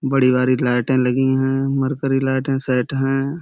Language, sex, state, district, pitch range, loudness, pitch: Hindi, male, Uttar Pradesh, Budaun, 130-135 Hz, -18 LUFS, 135 Hz